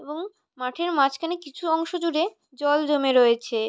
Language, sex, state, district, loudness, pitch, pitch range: Bengali, female, West Bengal, North 24 Parganas, -24 LUFS, 300 Hz, 265-335 Hz